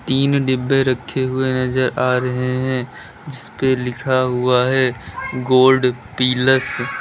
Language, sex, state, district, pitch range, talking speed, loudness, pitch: Hindi, male, Uttar Pradesh, Lalitpur, 125-130 Hz, 135 wpm, -18 LUFS, 130 Hz